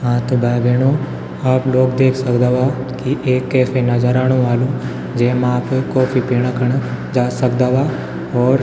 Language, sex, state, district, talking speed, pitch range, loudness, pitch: Garhwali, male, Uttarakhand, Tehri Garhwal, 155 wpm, 125-130 Hz, -16 LUFS, 125 Hz